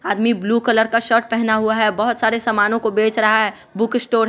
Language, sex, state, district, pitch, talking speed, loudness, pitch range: Hindi, male, Bihar, West Champaran, 225 Hz, 250 wpm, -17 LUFS, 220-230 Hz